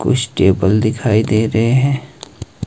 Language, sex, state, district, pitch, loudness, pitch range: Hindi, male, Himachal Pradesh, Shimla, 110 Hz, -15 LUFS, 105-130 Hz